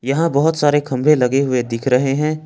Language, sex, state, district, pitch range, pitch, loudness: Hindi, male, Jharkhand, Ranchi, 130-150 Hz, 140 Hz, -16 LUFS